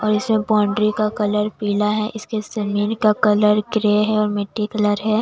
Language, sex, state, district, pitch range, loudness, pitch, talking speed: Hindi, female, Bihar, West Champaran, 210-215 Hz, -19 LUFS, 210 Hz, 195 wpm